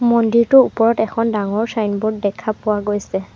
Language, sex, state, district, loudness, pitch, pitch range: Assamese, female, Assam, Sonitpur, -17 LUFS, 220 Hz, 205-230 Hz